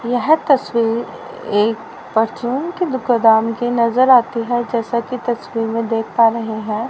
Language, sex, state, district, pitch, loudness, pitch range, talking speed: Hindi, female, Haryana, Rohtak, 235 Hz, -17 LUFS, 225-255 Hz, 155 wpm